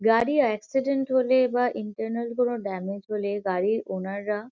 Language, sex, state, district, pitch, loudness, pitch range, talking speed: Bengali, female, West Bengal, Kolkata, 225 Hz, -26 LUFS, 205-245 Hz, 145 wpm